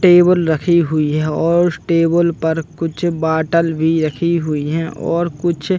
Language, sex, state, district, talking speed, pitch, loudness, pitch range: Hindi, male, Chhattisgarh, Bastar, 175 wpm, 165 Hz, -16 LUFS, 160-170 Hz